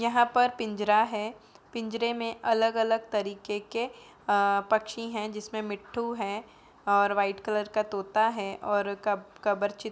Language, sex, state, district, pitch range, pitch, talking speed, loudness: Hindi, female, Uttar Pradesh, Jyotiba Phule Nagar, 205-230 Hz, 215 Hz, 155 wpm, -29 LUFS